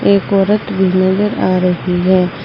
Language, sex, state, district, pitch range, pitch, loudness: Hindi, female, Uttar Pradesh, Saharanpur, 180-195 Hz, 185 Hz, -13 LUFS